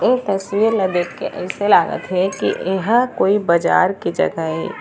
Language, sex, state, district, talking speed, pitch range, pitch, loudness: Chhattisgarhi, female, Chhattisgarh, Raigarh, 185 wpm, 180-210 Hz, 190 Hz, -18 LUFS